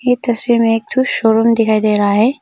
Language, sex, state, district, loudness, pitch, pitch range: Hindi, female, Arunachal Pradesh, Papum Pare, -14 LUFS, 225 Hz, 220-245 Hz